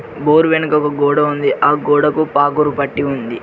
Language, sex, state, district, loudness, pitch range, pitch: Telugu, male, Telangana, Mahabubabad, -14 LUFS, 145-150 Hz, 145 Hz